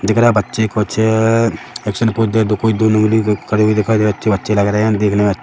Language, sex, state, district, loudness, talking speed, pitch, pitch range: Hindi, male, Chhattisgarh, Rajnandgaon, -15 LUFS, 275 wpm, 110 Hz, 105-110 Hz